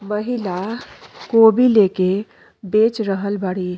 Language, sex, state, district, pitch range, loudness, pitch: Bhojpuri, female, Uttar Pradesh, Deoria, 190-225 Hz, -17 LUFS, 210 Hz